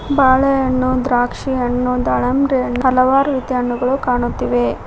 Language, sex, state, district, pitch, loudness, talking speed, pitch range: Kannada, female, Karnataka, Koppal, 255 Hz, -16 LUFS, 110 wpm, 245-265 Hz